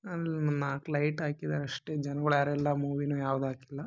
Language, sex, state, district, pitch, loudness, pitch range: Kannada, male, Karnataka, Bellary, 145 Hz, -32 LUFS, 140-150 Hz